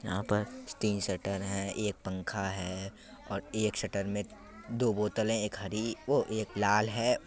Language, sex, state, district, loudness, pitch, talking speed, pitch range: Bundeli, male, Uttar Pradesh, Budaun, -33 LUFS, 105 Hz, 175 wpm, 100-110 Hz